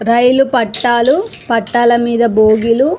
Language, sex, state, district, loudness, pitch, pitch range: Telugu, female, Telangana, Karimnagar, -12 LUFS, 235 Hz, 230-255 Hz